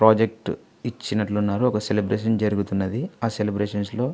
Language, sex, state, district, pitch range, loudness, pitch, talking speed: Telugu, male, Andhra Pradesh, Visakhapatnam, 100-110 Hz, -24 LUFS, 105 Hz, 85 wpm